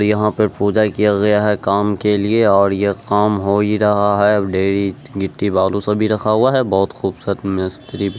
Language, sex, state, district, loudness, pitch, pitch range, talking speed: Angika, male, Bihar, Araria, -16 LUFS, 100 Hz, 100-105 Hz, 205 wpm